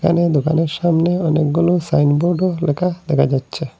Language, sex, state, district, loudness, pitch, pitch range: Bengali, male, Assam, Hailakandi, -17 LUFS, 165 Hz, 150-175 Hz